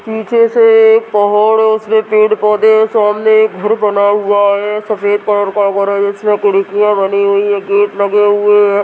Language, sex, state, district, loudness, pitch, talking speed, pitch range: Hindi, female, Uttarakhand, Uttarkashi, -11 LUFS, 210 Hz, 190 wpm, 205-220 Hz